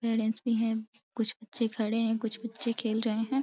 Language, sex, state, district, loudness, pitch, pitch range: Hindi, female, Uttar Pradesh, Deoria, -31 LUFS, 225 Hz, 220-230 Hz